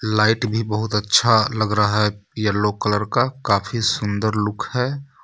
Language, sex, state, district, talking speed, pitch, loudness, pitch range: Hindi, male, Jharkhand, Ranchi, 160 wpm, 110 Hz, -20 LUFS, 105-115 Hz